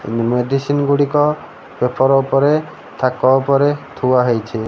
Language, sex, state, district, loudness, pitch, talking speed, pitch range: Odia, male, Odisha, Malkangiri, -16 LUFS, 135 Hz, 105 wpm, 125-145 Hz